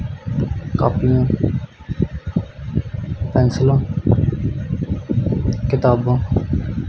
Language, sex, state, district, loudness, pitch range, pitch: Punjabi, male, Punjab, Kapurthala, -19 LUFS, 115-130 Hz, 125 Hz